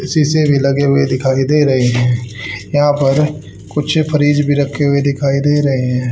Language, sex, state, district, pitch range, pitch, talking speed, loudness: Hindi, male, Haryana, Rohtak, 130-145 Hz, 140 Hz, 185 wpm, -14 LUFS